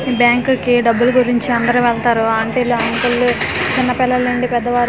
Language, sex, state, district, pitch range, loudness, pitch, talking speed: Telugu, female, Andhra Pradesh, Manyam, 240-250 Hz, -15 LUFS, 245 Hz, 160 wpm